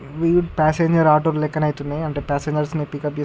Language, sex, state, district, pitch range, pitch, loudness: Telugu, male, Andhra Pradesh, Guntur, 150-160 Hz, 150 Hz, -20 LUFS